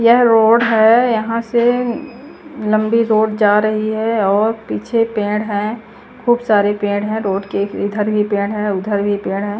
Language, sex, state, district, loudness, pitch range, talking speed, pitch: Hindi, female, Chandigarh, Chandigarh, -16 LUFS, 205-230 Hz, 175 wpm, 215 Hz